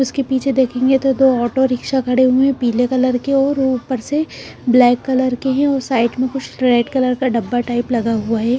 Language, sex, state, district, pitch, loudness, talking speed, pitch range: Hindi, female, Punjab, Kapurthala, 255 Hz, -16 LUFS, 215 wpm, 245-265 Hz